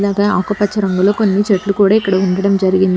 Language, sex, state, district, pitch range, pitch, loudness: Telugu, female, Telangana, Hyderabad, 190-205 Hz, 200 Hz, -14 LUFS